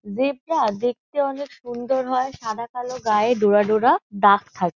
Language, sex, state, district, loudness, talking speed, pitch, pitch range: Bengali, female, West Bengal, Kolkata, -21 LUFS, 150 wpm, 240 Hz, 210-260 Hz